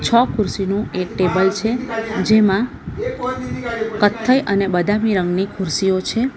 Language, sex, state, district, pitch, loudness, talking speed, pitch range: Gujarati, female, Gujarat, Valsad, 205 Hz, -18 LUFS, 115 wpm, 195-230 Hz